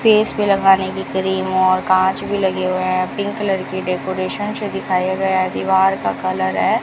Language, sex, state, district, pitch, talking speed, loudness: Hindi, female, Rajasthan, Bikaner, 185 Hz, 200 wpm, -18 LUFS